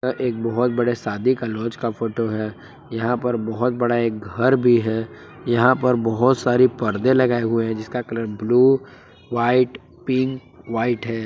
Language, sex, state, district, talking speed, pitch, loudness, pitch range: Hindi, male, Jharkhand, Palamu, 175 wpm, 120 Hz, -20 LUFS, 115-125 Hz